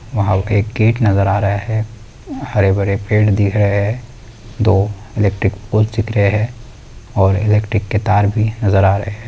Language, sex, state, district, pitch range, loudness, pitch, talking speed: Hindi, male, Chhattisgarh, Bilaspur, 100-110 Hz, -16 LUFS, 105 Hz, 190 wpm